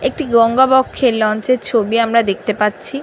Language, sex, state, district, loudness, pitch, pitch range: Bengali, female, West Bengal, North 24 Parganas, -14 LUFS, 230 Hz, 215-260 Hz